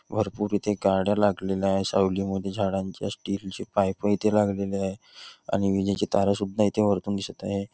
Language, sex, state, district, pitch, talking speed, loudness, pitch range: Hindi, male, Maharashtra, Chandrapur, 100 Hz, 165 wpm, -26 LUFS, 95-105 Hz